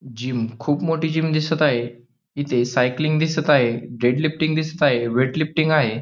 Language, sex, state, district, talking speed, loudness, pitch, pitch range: Marathi, male, Maharashtra, Pune, 160 wpm, -20 LUFS, 145 Hz, 120-155 Hz